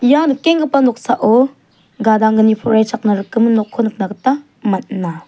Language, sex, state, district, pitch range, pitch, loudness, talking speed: Garo, female, Meghalaya, South Garo Hills, 215-255 Hz, 225 Hz, -15 LUFS, 115 wpm